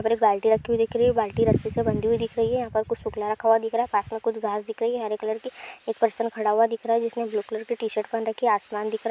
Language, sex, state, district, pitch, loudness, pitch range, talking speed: Hindi, female, Bihar, Supaul, 225 Hz, -25 LUFS, 220-230 Hz, 330 wpm